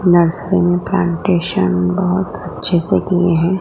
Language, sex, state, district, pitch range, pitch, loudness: Hindi, female, Gujarat, Gandhinagar, 170-185 Hz, 175 Hz, -15 LUFS